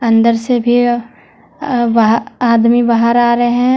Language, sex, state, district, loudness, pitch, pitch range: Hindi, female, Jharkhand, Deoghar, -12 LUFS, 240 Hz, 230-240 Hz